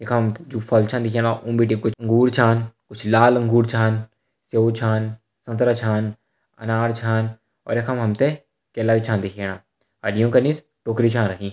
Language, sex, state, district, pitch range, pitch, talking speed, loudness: Hindi, male, Uttarakhand, Tehri Garhwal, 110-115 Hz, 115 Hz, 195 wpm, -21 LUFS